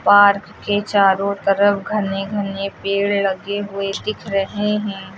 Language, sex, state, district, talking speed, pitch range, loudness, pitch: Hindi, female, Uttar Pradesh, Lucknow, 140 wpm, 195-205 Hz, -19 LUFS, 200 Hz